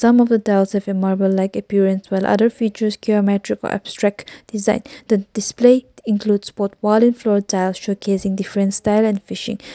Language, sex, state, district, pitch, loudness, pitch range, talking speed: English, female, Nagaland, Kohima, 210 Hz, -18 LUFS, 195-220 Hz, 155 wpm